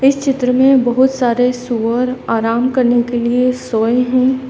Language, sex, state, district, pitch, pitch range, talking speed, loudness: Hindi, female, Uttar Pradesh, Lalitpur, 250 Hz, 240-255 Hz, 160 wpm, -14 LUFS